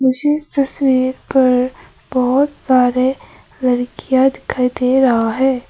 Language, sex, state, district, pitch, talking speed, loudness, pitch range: Hindi, female, Arunachal Pradesh, Papum Pare, 260 Hz, 115 wpm, -16 LUFS, 250-265 Hz